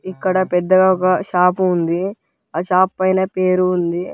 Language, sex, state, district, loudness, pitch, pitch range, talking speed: Telugu, male, Andhra Pradesh, Guntur, -17 LUFS, 185 Hz, 180-185 Hz, 130 wpm